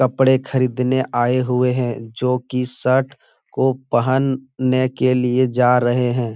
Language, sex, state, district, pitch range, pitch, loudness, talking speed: Hindi, male, Bihar, Supaul, 125-130 Hz, 125 Hz, -18 LUFS, 150 wpm